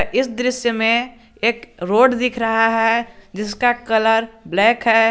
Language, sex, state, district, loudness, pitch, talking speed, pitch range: Hindi, male, Jharkhand, Garhwa, -17 LUFS, 230 Hz, 140 wpm, 225-240 Hz